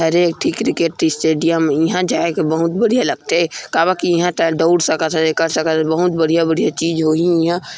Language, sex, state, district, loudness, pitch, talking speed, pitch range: Chhattisgarhi, male, Chhattisgarh, Kabirdham, -16 LUFS, 165 Hz, 225 wpm, 160-175 Hz